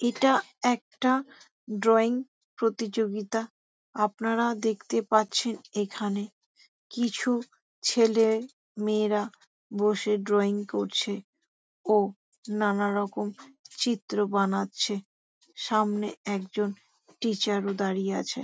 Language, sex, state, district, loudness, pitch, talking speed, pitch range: Bengali, female, West Bengal, Jhargram, -28 LUFS, 215 Hz, 80 wpm, 205-235 Hz